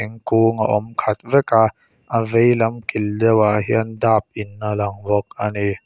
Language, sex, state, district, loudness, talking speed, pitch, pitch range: Mizo, male, Mizoram, Aizawl, -19 LUFS, 185 wpm, 110 Hz, 105-115 Hz